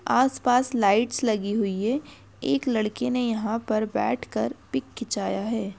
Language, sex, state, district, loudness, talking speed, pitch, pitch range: Hindi, female, Bihar, Purnia, -25 LUFS, 165 wpm, 225 Hz, 210-250 Hz